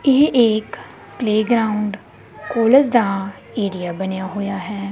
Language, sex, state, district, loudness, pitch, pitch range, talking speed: Punjabi, female, Punjab, Kapurthala, -18 LUFS, 210 Hz, 195-235 Hz, 120 wpm